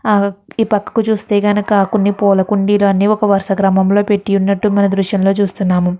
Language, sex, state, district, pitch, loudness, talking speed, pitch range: Telugu, female, Andhra Pradesh, Guntur, 200 Hz, -14 LUFS, 170 wpm, 195-210 Hz